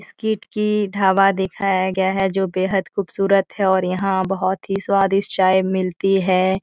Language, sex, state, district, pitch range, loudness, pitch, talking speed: Hindi, female, Bihar, Jahanabad, 190-195 Hz, -19 LUFS, 195 Hz, 155 wpm